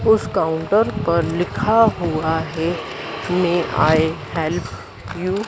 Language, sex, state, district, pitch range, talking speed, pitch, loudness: Hindi, female, Madhya Pradesh, Dhar, 160-180 Hz, 120 wpm, 165 Hz, -19 LUFS